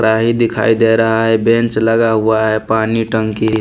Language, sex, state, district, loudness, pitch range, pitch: Hindi, male, Punjab, Pathankot, -13 LUFS, 110-115 Hz, 110 Hz